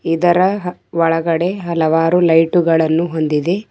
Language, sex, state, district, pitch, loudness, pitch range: Kannada, female, Karnataka, Bidar, 165 Hz, -15 LUFS, 165-175 Hz